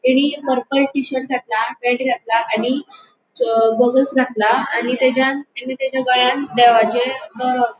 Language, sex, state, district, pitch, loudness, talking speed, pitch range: Konkani, female, Goa, North and South Goa, 250 Hz, -17 LUFS, 130 wpm, 240-265 Hz